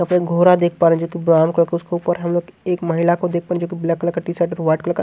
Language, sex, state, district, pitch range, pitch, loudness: Hindi, male, Haryana, Jhajjar, 170-175 Hz, 170 Hz, -18 LUFS